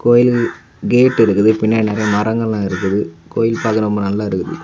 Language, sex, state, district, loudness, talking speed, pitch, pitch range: Tamil, male, Tamil Nadu, Kanyakumari, -15 LUFS, 140 wpm, 110 Hz, 105-115 Hz